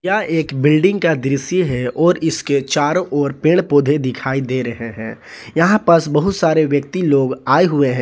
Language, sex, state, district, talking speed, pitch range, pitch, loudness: Hindi, male, Jharkhand, Palamu, 185 wpm, 135-170 Hz, 150 Hz, -16 LUFS